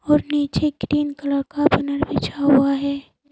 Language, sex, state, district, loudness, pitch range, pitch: Hindi, female, Madhya Pradesh, Bhopal, -20 LUFS, 280-295 Hz, 285 Hz